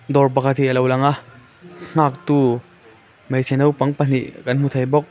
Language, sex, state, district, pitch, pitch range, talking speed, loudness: Mizo, male, Mizoram, Aizawl, 135 Hz, 125-145 Hz, 165 wpm, -19 LUFS